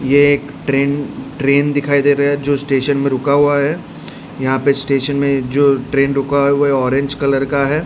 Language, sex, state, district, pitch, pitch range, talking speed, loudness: Hindi, male, Odisha, Khordha, 140 Hz, 135-145 Hz, 215 wpm, -15 LUFS